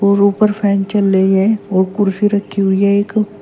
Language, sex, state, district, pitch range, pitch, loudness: Hindi, female, Uttar Pradesh, Shamli, 195-205 Hz, 200 Hz, -14 LUFS